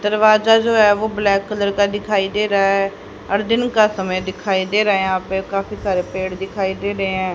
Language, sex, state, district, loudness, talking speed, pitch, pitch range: Hindi, female, Haryana, Rohtak, -18 LUFS, 220 wpm, 200 Hz, 190-210 Hz